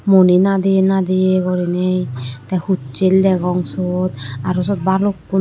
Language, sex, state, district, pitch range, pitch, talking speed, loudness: Chakma, female, Tripura, Dhalai, 180-190 Hz, 185 Hz, 120 wpm, -16 LUFS